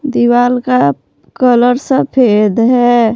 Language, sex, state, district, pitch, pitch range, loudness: Hindi, female, Jharkhand, Palamu, 245 Hz, 235-250 Hz, -11 LUFS